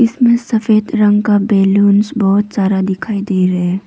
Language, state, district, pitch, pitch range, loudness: Hindi, Arunachal Pradesh, Papum Pare, 205 Hz, 195-220 Hz, -13 LUFS